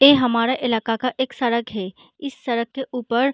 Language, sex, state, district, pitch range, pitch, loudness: Hindi, female, Uttar Pradesh, Gorakhpur, 235-265 Hz, 245 Hz, -21 LUFS